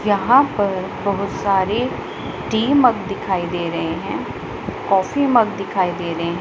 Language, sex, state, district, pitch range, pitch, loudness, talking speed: Hindi, female, Punjab, Pathankot, 185-225 Hz, 200 Hz, -19 LUFS, 140 wpm